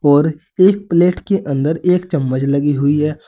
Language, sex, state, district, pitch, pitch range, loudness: Hindi, male, Uttar Pradesh, Saharanpur, 155 Hz, 145-180 Hz, -15 LUFS